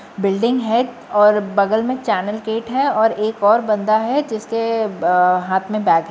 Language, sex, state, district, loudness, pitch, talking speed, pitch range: Hindi, female, Uttar Pradesh, Jyotiba Phule Nagar, -17 LUFS, 215 Hz, 185 wpm, 205-230 Hz